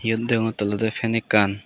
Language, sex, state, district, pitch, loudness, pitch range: Chakma, male, Tripura, West Tripura, 110 Hz, -22 LUFS, 105-115 Hz